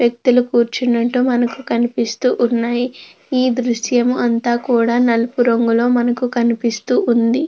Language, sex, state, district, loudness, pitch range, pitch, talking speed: Telugu, female, Andhra Pradesh, Krishna, -16 LUFS, 235-250 Hz, 240 Hz, 110 wpm